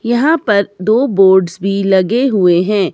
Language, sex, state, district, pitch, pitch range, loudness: Hindi, female, Himachal Pradesh, Shimla, 200 Hz, 190-235 Hz, -12 LUFS